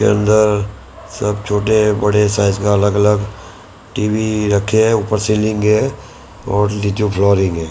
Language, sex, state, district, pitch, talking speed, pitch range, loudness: Hindi, male, Maharashtra, Mumbai Suburban, 105 Hz, 140 wpm, 100-105 Hz, -15 LUFS